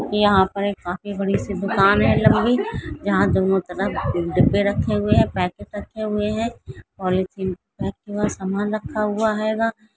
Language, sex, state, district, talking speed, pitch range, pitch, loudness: Hindi, female, Chhattisgarh, Rajnandgaon, 150 wpm, 190-210 Hz, 200 Hz, -21 LUFS